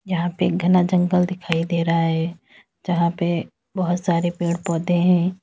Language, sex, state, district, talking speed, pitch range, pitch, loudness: Hindi, female, Uttar Pradesh, Lalitpur, 175 wpm, 170-180 Hz, 175 Hz, -21 LUFS